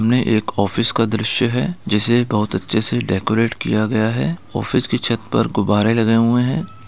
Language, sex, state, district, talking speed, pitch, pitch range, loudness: Hindi, male, Bihar, East Champaran, 190 wpm, 115 Hz, 110-120 Hz, -18 LUFS